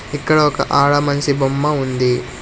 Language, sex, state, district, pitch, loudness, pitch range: Telugu, male, Telangana, Hyderabad, 140 Hz, -16 LUFS, 130-145 Hz